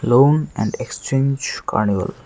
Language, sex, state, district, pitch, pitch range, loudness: Bengali, male, Tripura, West Tripura, 135 Hz, 110-140 Hz, -19 LUFS